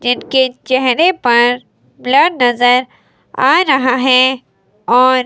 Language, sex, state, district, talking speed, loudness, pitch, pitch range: Hindi, female, Himachal Pradesh, Shimla, 100 wpm, -12 LUFS, 255 Hz, 245-260 Hz